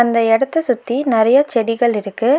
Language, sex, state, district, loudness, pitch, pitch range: Tamil, female, Tamil Nadu, Nilgiris, -16 LUFS, 235 Hz, 225-260 Hz